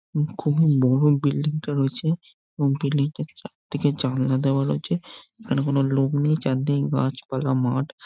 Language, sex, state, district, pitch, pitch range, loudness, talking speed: Bengali, male, West Bengal, Jhargram, 140 Hz, 130-145 Hz, -23 LUFS, 125 wpm